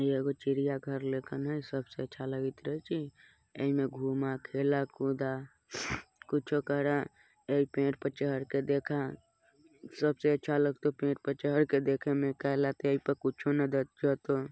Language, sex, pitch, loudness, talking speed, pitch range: Bajjika, male, 140 Hz, -33 LUFS, 140 wpm, 135-145 Hz